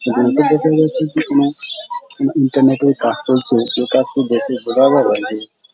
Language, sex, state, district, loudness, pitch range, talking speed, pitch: Bengali, male, West Bengal, Dakshin Dinajpur, -15 LUFS, 125-155 Hz, 165 wpm, 140 Hz